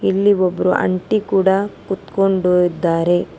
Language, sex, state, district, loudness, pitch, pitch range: Kannada, female, Karnataka, Bangalore, -17 LUFS, 190 Hz, 180-195 Hz